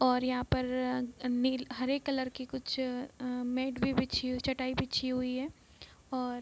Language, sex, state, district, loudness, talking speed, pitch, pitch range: Hindi, female, Bihar, East Champaran, -34 LUFS, 160 wpm, 255 Hz, 250-260 Hz